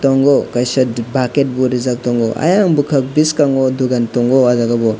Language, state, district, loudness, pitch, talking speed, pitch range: Kokborok, Tripura, West Tripura, -14 LUFS, 130 Hz, 155 wpm, 120-140 Hz